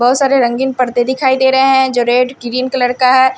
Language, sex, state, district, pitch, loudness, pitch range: Hindi, female, Punjab, Kapurthala, 255 Hz, -12 LUFS, 245-265 Hz